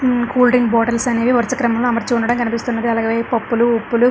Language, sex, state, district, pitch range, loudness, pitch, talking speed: Telugu, female, Andhra Pradesh, Srikakulam, 230-245 Hz, -16 LUFS, 235 Hz, 220 wpm